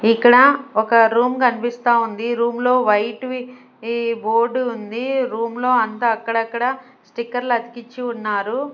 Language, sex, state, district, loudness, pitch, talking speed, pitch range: Telugu, female, Andhra Pradesh, Sri Satya Sai, -18 LUFS, 235 Hz, 130 wpm, 230-250 Hz